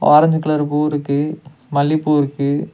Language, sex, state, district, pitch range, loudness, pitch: Tamil, male, Tamil Nadu, Nilgiris, 145-155 Hz, -17 LUFS, 150 Hz